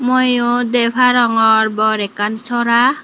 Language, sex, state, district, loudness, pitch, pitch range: Chakma, female, Tripura, Unakoti, -14 LUFS, 240 Hz, 220-245 Hz